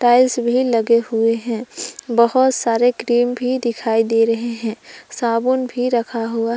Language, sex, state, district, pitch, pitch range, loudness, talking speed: Hindi, female, Jharkhand, Palamu, 235 Hz, 230-250 Hz, -18 LUFS, 155 wpm